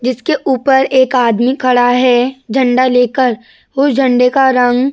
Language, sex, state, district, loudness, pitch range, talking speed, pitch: Hindi, female, Uttar Pradesh, Jyotiba Phule Nagar, -12 LUFS, 245-265 Hz, 160 wpm, 255 Hz